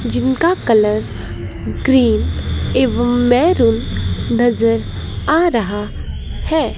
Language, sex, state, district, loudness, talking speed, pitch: Hindi, female, Himachal Pradesh, Shimla, -16 LUFS, 80 wpm, 220 Hz